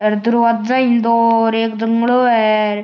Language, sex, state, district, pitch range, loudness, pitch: Marwari, male, Rajasthan, Churu, 220-235 Hz, -14 LUFS, 230 Hz